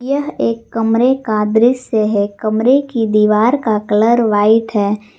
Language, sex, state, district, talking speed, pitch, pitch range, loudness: Hindi, female, Jharkhand, Garhwa, 150 wpm, 225 Hz, 210-240 Hz, -14 LUFS